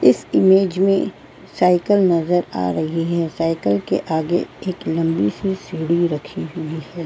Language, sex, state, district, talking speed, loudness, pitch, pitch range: Hindi, female, Uttar Pradesh, Varanasi, 155 wpm, -19 LUFS, 165 Hz, 160-180 Hz